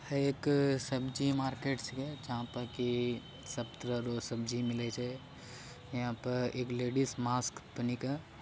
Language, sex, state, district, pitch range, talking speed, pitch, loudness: Angika, male, Bihar, Bhagalpur, 120-135 Hz, 150 wpm, 125 Hz, -36 LUFS